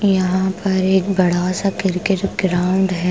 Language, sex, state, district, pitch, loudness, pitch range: Hindi, female, Punjab, Pathankot, 190 Hz, -18 LUFS, 185-195 Hz